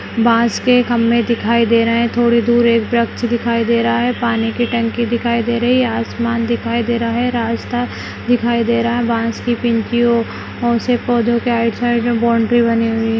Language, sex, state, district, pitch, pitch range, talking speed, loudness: Hindi, female, Bihar, Madhepura, 235 Hz, 230-240 Hz, 205 wpm, -16 LUFS